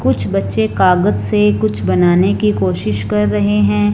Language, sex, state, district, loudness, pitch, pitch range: Hindi, female, Punjab, Fazilka, -14 LUFS, 105 Hz, 100-105 Hz